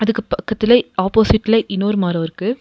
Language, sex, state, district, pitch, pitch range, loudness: Tamil, female, Tamil Nadu, Nilgiris, 215 Hz, 190-225 Hz, -17 LUFS